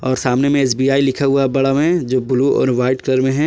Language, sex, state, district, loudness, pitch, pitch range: Hindi, male, Jharkhand, Palamu, -16 LUFS, 135 Hz, 130-140 Hz